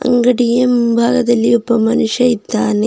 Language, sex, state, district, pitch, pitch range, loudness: Kannada, female, Karnataka, Bidar, 235 Hz, 230-245 Hz, -13 LUFS